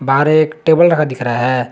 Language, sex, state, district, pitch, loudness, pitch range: Hindi, male, Jharkhand, Garhwa, 135 Hz, -13 LUFS, 125-155 Hz